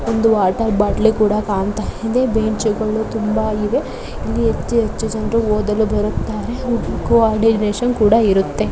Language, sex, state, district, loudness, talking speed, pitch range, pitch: Kannada, female, Karnataka, Shimoga, -17 LUFS, 130 wpm, 210-225 Hz, 220 Hz